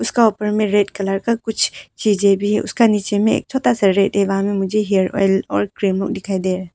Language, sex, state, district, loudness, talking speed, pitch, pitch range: Hindi, female, Arunachal Pradesh, Papum Pare, -18 LUFS, 220 wpm, 200 Hz, 195-215 Hz